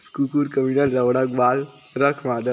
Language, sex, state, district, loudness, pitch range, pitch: Hindi, male, Chhattisgarh, Korba, -21 LUFS, 125-140 Hz, 130 Hz